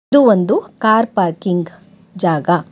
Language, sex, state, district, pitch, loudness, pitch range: Kannada, female, Karnataka, Bangalore, 190 Hz, -15 LUFS, 175-220 Hz